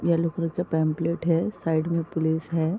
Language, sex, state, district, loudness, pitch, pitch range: Hindi, female, Uttar Pradesh, Varanasi, -25 LUFS, 165 Hz, 160-170 Hz